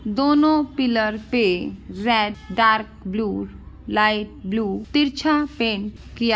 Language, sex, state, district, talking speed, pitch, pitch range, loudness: Hindi, female, Rajasthan, Nagaur, 105 wpm, 220 Hz, 210-265 Hz, -21 LUFS